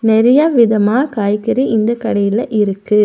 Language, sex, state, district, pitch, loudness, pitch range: Tamil, female, Tamil Nadu, Nilgiris, 220 Hz, -14 LUFS, 210-235 Hz